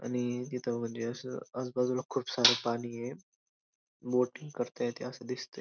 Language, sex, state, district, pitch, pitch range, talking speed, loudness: Marathi, male, Maharashtra, Dhule, 125 Hz, 120-125 Hz, 150 wpm, -33 LUFS